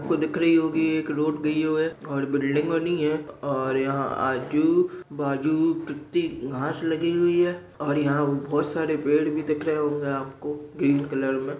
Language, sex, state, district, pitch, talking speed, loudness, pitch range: Hindi, male, Chhattisgarh, Raigarh, 150 Hz, 165 wpm, -25 LUFS, 140-160 Hz